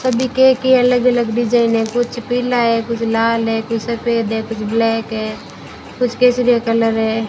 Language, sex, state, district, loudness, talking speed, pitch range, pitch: Hindi, female, Rajasthan, Bikaner, -16 LUFS, 180 wpm, 225-245 Hz, 230 Hz